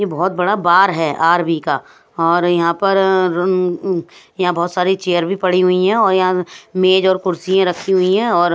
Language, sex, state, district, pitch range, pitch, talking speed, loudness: Hindi, female, Punjab, Pathankot, 175-190 Hz, 185 Hz, 210 wpm, -15 LUFS